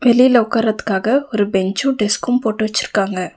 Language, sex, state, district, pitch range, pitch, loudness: Tamil, female, Tamil Nadu, Nilgiris, 200-250 Hz, 215 Hz, -16 LUFS